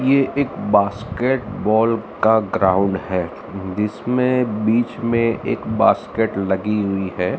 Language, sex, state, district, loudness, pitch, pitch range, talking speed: Hindi, male, Maharashtra, Mumbai Suburban, -19 LUFS, 105 Hz, 95-120 Hz, 115 wpm